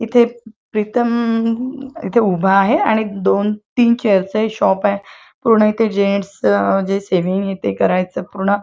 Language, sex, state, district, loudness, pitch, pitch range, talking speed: Marathi, female, Maharashtra, Chandrapur, -16 LUFS, 210 Hz, 195-230 Hz, 125 wpm